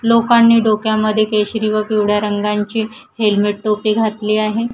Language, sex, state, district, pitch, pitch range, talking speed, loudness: Marathi, female, Maharashtra, Gondia, 215 Hz, 210-220 Hz, 125 wpm, -15 LUFS